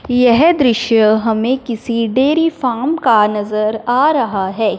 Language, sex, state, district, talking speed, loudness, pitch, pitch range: Hindi, female, Punjab, Fazilka, 140 wpm, -14 LUFS, 235 Hz, 215-265 Hz